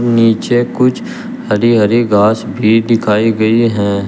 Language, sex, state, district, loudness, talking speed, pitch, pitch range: Hindi, male, Uttar Pradesh, Shamli, -12 LUFS, 130 wpm, 115 Hz, 110-120 Hz